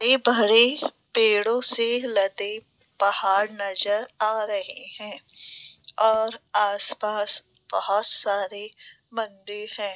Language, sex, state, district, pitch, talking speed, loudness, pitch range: Hindi, female, Rajasthan, Jaipur, 215 Hz, 115 wpm, -18 LUFS, 205-235 Hz